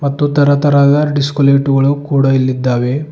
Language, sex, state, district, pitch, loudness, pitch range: Kannada, male, Karnataka, Bidar, 140 Hz, -12 LUFS, 135-145 Hz